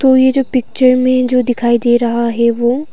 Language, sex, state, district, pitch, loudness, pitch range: Hindi, female, Arunachal Pradesh, Papum Pare, 250 Hz, -13 LUFS, 235-255 Hz